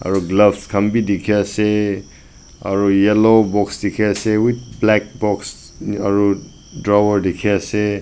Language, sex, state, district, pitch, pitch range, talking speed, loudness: Nagamese, male, Nagaland, Dimapur, 105 Hz, 100-105 Hz, 135 wpm, -17 LUFS